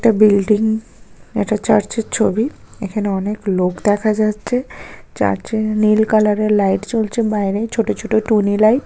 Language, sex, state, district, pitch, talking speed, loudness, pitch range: Bengali, female, West Bengal, Kolkata, 215 Hz, 155 wpm, -17 LUFS, 210-220 Hz